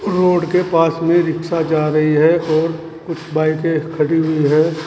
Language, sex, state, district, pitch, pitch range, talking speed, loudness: Hindi, male, Uttar Pradesh, Saharanpur, 165 Hz, 155-170 Hz, 170 wpm, -16 LUFS